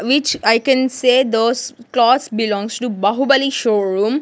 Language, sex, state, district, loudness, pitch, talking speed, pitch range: English, female, Maharashtra, Gondia, -16 LUFS, 245 Hz, 140 wpm, 220-260 Hz